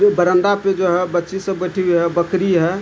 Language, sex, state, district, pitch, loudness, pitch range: Hindi, male, Bihar, Supaul, 180 Hz, -17 LUFS, 175-195 Hz